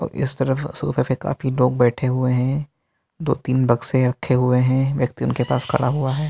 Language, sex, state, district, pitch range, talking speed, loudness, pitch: Hindi, male, Bihar, Katihar, 125-140 Hz, 210 wpm, -20 LUFS, 130 Hz